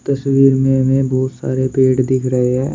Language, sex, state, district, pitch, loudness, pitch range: Hindi, male, Uttar Pradesh, Shamli, 130 Hz, -15 LUFS, 130-135 Hz